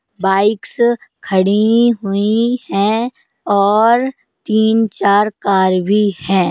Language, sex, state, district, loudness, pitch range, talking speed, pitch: Hindi, female, Uttar Pradesh, Jalaun, -15 LUFS, 195-230 Hz, 85 wpm, 210 Hz